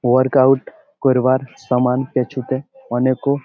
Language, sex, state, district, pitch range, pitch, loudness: Bengali, male, West Bengal, Malda, 125-135 Hz, 130 Hz, -18 LUFS